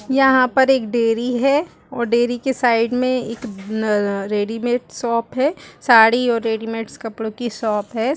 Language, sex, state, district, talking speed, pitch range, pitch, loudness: Hindi, female, Chhattisgarh, Raigarh, 155 wpm, 225-255 Hz, 235 Hz, -18 LUFS